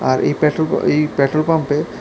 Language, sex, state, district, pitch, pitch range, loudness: Bengali, male, Tripura, West Tripura, 150 Hz, 145-160 Hz, -17 LUFS